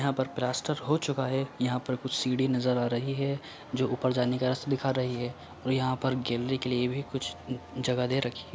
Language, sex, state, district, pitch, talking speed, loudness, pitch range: Hindi, male, Bihar, Supaul, 130 Hz, 240 wpm, -30 LUFS, 125-135 Hz